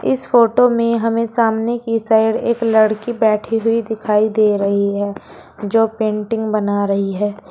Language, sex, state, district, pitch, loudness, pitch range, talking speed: Hindi, female, Uttar Pradesh, Shamli, 220 Hz, -16 LUFS, 210-230 Hz, 160 wpm